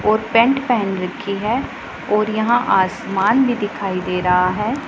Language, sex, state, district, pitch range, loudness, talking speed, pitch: Hindi, female, Punjab, Pathankot, 190-240 Hz, -18 LUFS, 160 wpm, 210 Hz